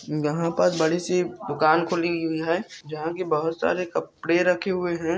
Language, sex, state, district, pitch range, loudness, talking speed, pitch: Hindi, male, Rajasthan, Churu, 160-175 Hz, -24 LUFS, 185 wpm, 170 Hz